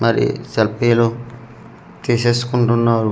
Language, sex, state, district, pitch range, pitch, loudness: Telugu, male, Andhra Pradesh, Manyam, 115-120 Hz, 120 Hz, -17 LUFS